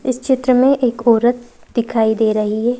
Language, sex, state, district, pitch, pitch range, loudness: Hindi, female, Madhya Pradesh, Bhopal, 240 Hz, 225-255 Hz, -16 LUFS